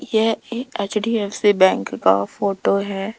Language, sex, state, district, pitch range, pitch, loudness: Hindi, female, Rajasthan, Jaipur, 195-220 Hz, 200 Hz, -19 LUFS